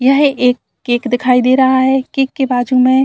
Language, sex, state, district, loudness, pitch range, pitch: Hindi, female, Bihar, Saran, -13 LUFS, 250-265 Hz, 260 Hz